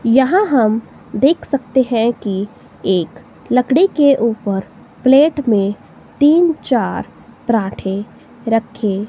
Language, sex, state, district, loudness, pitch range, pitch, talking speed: Hindi, female, Himachal Pradesh, Shimla, -16 LUFS, 205-275 Hz, 235 Hz, 105 wpm